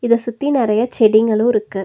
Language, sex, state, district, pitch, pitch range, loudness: Tamil, female, Tamil Nadu, Nilgiris, 230 Hz, 215-240 Hz, -15 LUFS